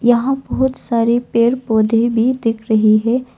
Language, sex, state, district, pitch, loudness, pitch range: Hindi, female, Arunachal Pradesh, Longding, 235 Hz, -15 LUFS, 225-255 Hz